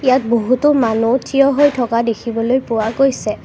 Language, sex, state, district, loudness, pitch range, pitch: Assamese, female, Assam, Kamrup Metropolitan, -15 LUFS, 230-270 Hz, 245 Hz